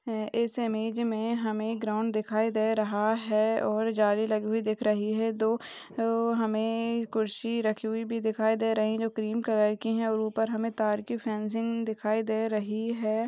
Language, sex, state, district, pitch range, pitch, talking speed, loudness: Hindi, female, Rajasthan, Nagaur, 215-225 Hz, 220 Hz, 190 wpm, -29 LUFS